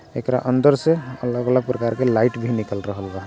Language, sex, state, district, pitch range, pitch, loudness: Bhojpuri, male, Bihar, Gopalganj, 110-130 Hz, 125 Hz, -20 LUFS